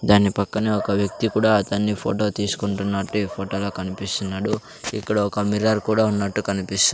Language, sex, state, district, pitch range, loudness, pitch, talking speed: Telugu, male, Andhra Pradesh, Sri Satya Sai, 100-105 Hz, -22 LUFS, 100 Hz, 145 wpm